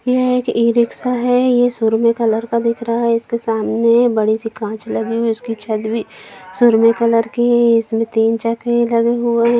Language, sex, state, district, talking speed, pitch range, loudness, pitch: Hindi, female, Bihar, Jamui, 200 wpm, 225-235 Hz, -16 LUFS, 230 Hz